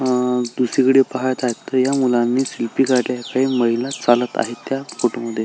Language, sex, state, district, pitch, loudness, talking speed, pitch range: Marathi, male, Maharashtra, Solapur, 125 Hz, -19 LUFS, 185 wpm, 120-130 Hz